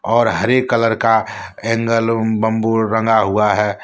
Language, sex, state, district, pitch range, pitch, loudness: Hindi, male, Jharkhand, Deoghar, 110-115 Hz, 110 Hz, -16 LUFS